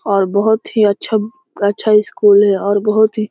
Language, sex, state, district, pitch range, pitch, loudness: Hindi, female, Bihar, East Champaran, 205-220 Hz, 210 Hz, -14 LUFS